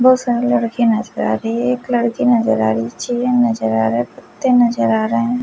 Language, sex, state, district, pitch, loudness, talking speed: Hindi, female, Bihar, West Champaran, 225 Hz, -16 LUFS, 245 wpm